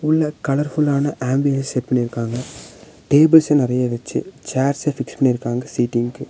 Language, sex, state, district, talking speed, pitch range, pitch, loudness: Tamil, male, Tamil Nadu, Nilgiris, 145 wpm, 125-145 Hz, 135 Hz, -19 LUFS